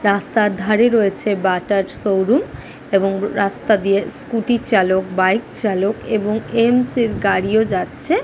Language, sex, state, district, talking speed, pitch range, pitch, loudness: Bengali, female, West Bengal, Kolkata, 125 wpm, 195-225 Hz, 205 Hz, -17 LUFS